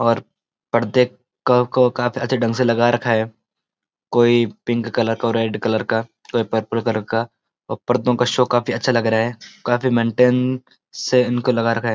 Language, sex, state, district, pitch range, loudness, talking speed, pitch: Hindi, male, Uttarakhand, Uttarkashi, 115-125 Hz, -19 LUFS, 190 wpm, 120 Hz